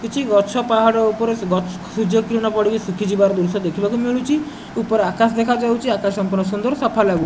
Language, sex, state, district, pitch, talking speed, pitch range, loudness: Odia, male, Odisha, Nuapada, 220 Hz, 180 wpm, 200-230 Hz, -18 LUFS